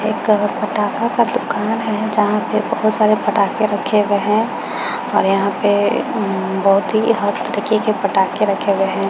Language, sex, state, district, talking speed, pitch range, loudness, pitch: Hindi, female, Bihar, Bhagalpur, 180 wpm, 205-215 Hz, -17 LUFS, 210 Hz